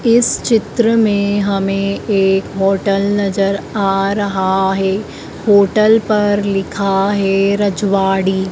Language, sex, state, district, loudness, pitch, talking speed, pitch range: Hindi, female, Madhya Pradesh, Dhar, -15 LUFS, 200 Hz, 105 wpm, 195-205 Hz